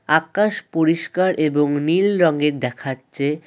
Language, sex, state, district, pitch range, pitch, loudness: Bengali, male, West Bengal, Alipurduar, 145-175 Hz, 155 Hz, -19 LUFS